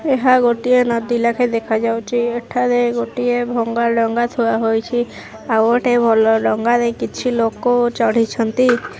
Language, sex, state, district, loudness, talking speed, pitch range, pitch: Odia, male, Odisha, Khordha, -17 LUFS, 120 wpm, 230-245 Hz, 235 Hz